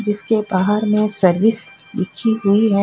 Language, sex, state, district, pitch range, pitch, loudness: Hindi, female, Jharkhand, Ranchi, 190-220 Hz, 210 Hz, -17 LUFS